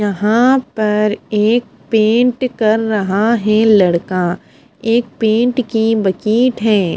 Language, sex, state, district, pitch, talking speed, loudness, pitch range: Hindi, female, Punjab, Fazilka, 220 Hz, 110 wpm, -14 LUFS, 210-235 Hz